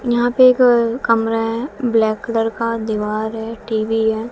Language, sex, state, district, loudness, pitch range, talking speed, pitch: Hindi, female, Haryana, Jhajjar, -17 LUFS, 220-240 Hz, 165 wpm, 225 Hz